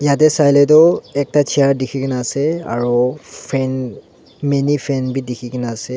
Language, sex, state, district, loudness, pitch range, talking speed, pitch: Nagamese, male, Nagaland, Dimapur, -16 LUFS, 125-145 Hz, 120 wpm, 135 Hz